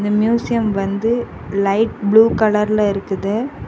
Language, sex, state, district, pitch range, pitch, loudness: Tamil, female, Tamil Nadu, Kanyakumari, 200-225 Hz, 210 Hz, -17 LUFS